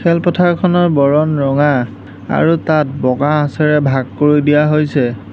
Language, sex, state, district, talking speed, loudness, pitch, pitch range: Assamese, male, Assam, Hailakandi, 125 wpm, -13 LUFS, 150 Hz, 135-155 Hz